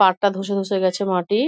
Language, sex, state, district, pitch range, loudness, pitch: Bengali, female, West Bengal, Dakshin Dinajpur, 190-200 Hz, -21 LUFS, 195 Hz